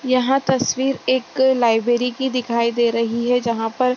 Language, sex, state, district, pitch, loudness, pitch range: Hindi, female, Bihar, Gopalganj, 250 Hz, -19 LUFS, 235-260 Hz